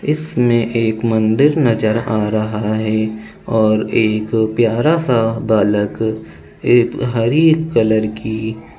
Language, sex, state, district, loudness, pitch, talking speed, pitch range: Hindi, male, Uttar Pradesh, Budaun, -16 LUFS, 110 Hz, 115 wpm, 110-120 Hz